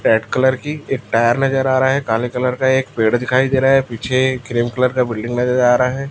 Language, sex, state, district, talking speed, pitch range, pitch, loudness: Hindi, male, Chhattisgarh, Raipur, 265 wpm, 120-130 Hz, 130 Hz, -16 LUFS